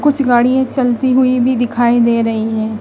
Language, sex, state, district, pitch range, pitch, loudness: Hindi, female, Madhya Pradesh, Dhar, 235-260 Hz, 245 Hz, -13 LUFS